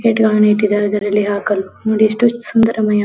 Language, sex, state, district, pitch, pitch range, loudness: Kannada, female, Karnataka, Dharwad, 210 Hz, 205-225 Hz, -15 LUFS